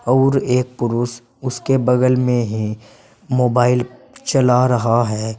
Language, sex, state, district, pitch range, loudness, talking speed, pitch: Hindi, male, Uttar Pradesh, Saharanpur, 120-130 Hz, -17 LUFS, 120 wpm, 125 Hz